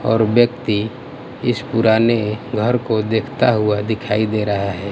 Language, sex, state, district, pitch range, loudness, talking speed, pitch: Hindi, male, Gujarat, Gandhinagar, 105-120 Hz, -18 LUFS, 145 wpm, 110 Hz